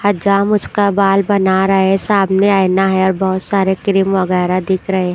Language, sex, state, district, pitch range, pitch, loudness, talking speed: Hindi, female, Punjab, Pathankot, 190-200 Hz, 195 Hz, -14 LUFS, 200 wpm